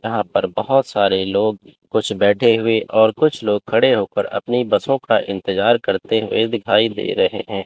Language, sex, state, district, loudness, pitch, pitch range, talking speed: Hindi, male, Chandigarh, Chandigarh, -17 LUFS, 110 Hz, 100-120 Hz, 180 wpm